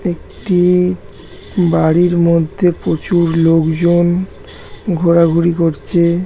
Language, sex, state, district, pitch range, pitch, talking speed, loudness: Bengali, male, West Bengal, North 24 Parganas, 165-180 Hz, 170 Hz, 65 wpm, -14 LUFS